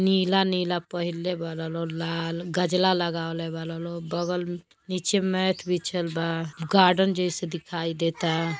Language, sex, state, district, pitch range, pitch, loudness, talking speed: Bhojpuri, female, Uttar Pradesh, Gorakhpur, 165-180 Hz, 175 Hz, -26 LUFS, 125 wpm